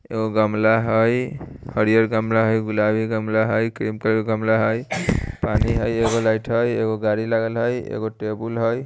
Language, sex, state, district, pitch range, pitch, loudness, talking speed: Hindi, male, Bihar, Muzaffarpur, 110-115 Hz, 110 Hz, -21 LUFS, 175 wpm